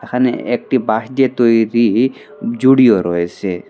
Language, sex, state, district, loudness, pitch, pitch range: Bengali, male, Assam, Hailakandi, -14 LUFS, 120 Hz, 110-130 Hz